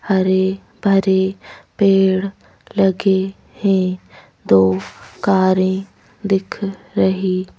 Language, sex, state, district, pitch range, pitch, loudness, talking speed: Hindi, female, Madhya Pradesh, Bhopal, 185-195 Hz, 190 Hz, -17 LUFS, 70 wpm